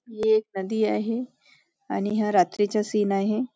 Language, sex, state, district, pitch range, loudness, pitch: Marathi, female, Maharashtra, Nagpur, 205-225 Hz, -25 LUFS, 215 Hz